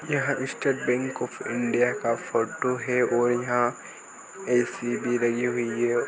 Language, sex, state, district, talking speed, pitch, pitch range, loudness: Hindi, male, Goa, North and South Goa, 150 wpm, 125 Hz, 120-125 Hz, -26 LUFS